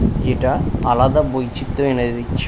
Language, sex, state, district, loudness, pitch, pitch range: Bengali, male, West Bengal, Paschim Medinipur, -18 LUFS, 125 Hz, 120-130 Hz